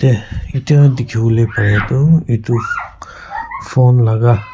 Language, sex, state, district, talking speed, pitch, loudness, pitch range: Nagamese, male, Nagaland, Kohima, 120 wpm, 120 Hz, -13 LUFS, 115-140 Hz